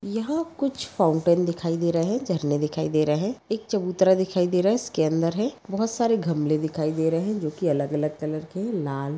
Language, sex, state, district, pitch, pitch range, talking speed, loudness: Hindi, female, Maharashtra, Pune, 170 Hz, 155-210 Hz, 230 wpm, -24 LUFS